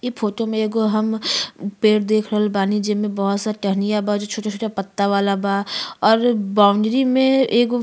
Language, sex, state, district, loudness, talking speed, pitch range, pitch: Bhojpuri, female, Uttar Pradesh, Gorakhpur, -19 LUFS, 190 wpm, 200-220 Hz, 210 Hz